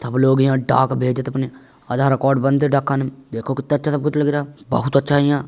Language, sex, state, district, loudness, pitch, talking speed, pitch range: Hindi, male, Uttar Pradesh, Muzaffarnagar, -19 LUFS, 135 Hz, 230 wpm, 130-145 Hz